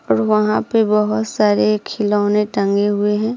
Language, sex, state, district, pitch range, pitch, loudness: Hindi, female, Bihar, Vaishali, 205-215 Hz, 210 Hz, -17 LUFS